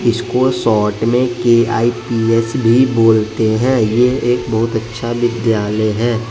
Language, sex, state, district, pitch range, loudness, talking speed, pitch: Hindi, male, Bihar, West Champaran, 110-120 Hz, -14 LUFS, 125 wpm, 115 Hz